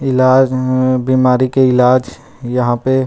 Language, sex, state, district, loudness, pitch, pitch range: Chhattisgarhi, male, Chhattisgarh, Rajnandgaon, -13 LUFS, 130 Hz, 125-130 Hz